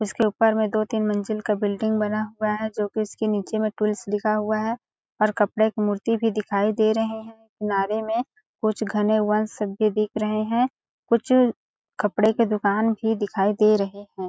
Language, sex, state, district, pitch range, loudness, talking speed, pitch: Hindi, female, Chhattisgarh, Balrampur, 210-220 Hz, -23 LUFS, 195 wpm, 215 Hz